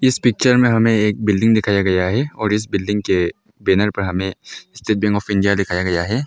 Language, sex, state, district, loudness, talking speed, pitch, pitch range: Hindi, male, Arunachal Pradesh, Longding, -17 LUFS, 210 wpm, 105 Hz, 95-115 Hz